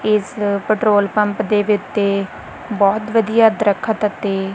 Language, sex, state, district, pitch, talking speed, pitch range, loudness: Punjabi, female, Punjab, Kapurthala, 210 Hz, 120 wpm, 200-215 Hz, -17 LUFS